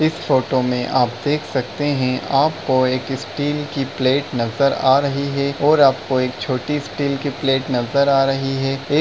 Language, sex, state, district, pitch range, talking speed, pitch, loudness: Hindi, male, Bihar, Gaya, 130-145 Hz, 195 wpm, 135 Hz, -19 LUFS